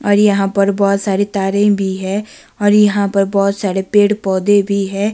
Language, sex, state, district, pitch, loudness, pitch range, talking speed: Hindi, female, Himachal Pradesh, Shimla, 200 Hz, -14 LUFS, 195-205 Hz, 200 wpm